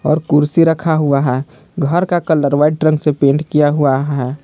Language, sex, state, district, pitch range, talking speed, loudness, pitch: Hindi, male, Jharkhand, Palamu, 140-155 Hz, 205 wpm, -14 LUFS, 150 Hz